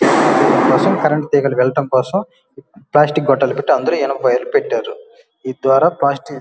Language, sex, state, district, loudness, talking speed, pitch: Telugu, male, Andhra Pradesh, Guntur, -15 LUFS, 160 wpm, 150 Hz